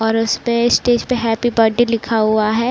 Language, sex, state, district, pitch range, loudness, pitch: Hindi, female, Uttar Pradesh, Budaun, 225-240 Hz, -16 LUFS, 230 Hz